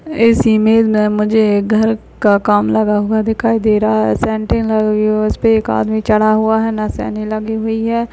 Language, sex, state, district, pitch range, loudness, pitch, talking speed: Hindi, female, Bihar, Jahanabad, 215-225 Hz, -14 LUFS, 215 Hz, 200 wpm